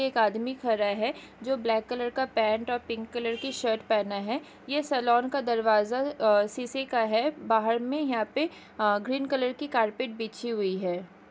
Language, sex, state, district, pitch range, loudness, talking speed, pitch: Hindi, female, Chhattisgarh, Kabirdham, 220-260 Hz, -28 LUFS, 185 wpm, 235 Hz